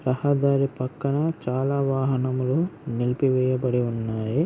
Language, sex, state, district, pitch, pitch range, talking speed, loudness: Telugu, male, Andhra Pradesh, Srikakulam, 130 Hz, 125-140 Hz, 95 wpm, -24 LUFS